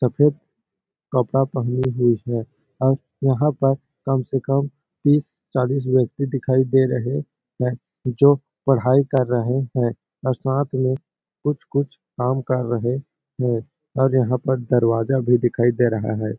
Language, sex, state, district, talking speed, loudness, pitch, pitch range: Hindi, male, Chhattisgarh, Balrampur, 145 wpm, -21 LUFS, 130 Hz, 125-140 Hz